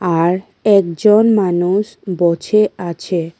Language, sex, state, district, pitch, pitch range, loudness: Bengali, female, Tripura, West Tripura, 185 Hz, 175-210 Hz, -15 LUFS